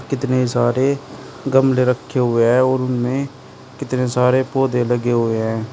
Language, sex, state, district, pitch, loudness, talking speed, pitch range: Hindi, male, Uttar Pradesh, Shamli, 125 Hz, -18 LUFS, 145 wpm, 120-135 Hz